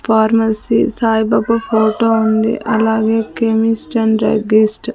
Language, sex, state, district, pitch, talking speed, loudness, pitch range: Telugu, female, Andhra Pradesh, Sri Satya Sai, 220 Hz, 110 wpm, -14 LUFS, 220-225 Hz